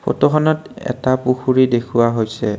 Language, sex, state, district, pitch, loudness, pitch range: Assamese, male, Assam, Kamrup Metropolitan, 125 Hz, -17 LUFS, 115-130 Hz